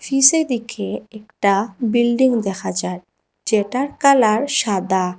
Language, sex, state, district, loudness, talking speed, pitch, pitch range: Bengali, female, Assam, Hailakandi, -18 LUFS, 105 wpm, 225 Hz, 200-260 Hz